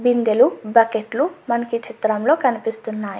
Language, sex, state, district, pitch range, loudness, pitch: Telugu, female, Andhra Pradesh, Anantapur, 220-245 Hz, -19 LUFS, 230 Hz